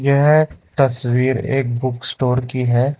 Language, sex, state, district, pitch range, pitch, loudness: Hindi, male, Karnataka, Bangalore, 125-135 Hz, 130 Hz, -18 LUFS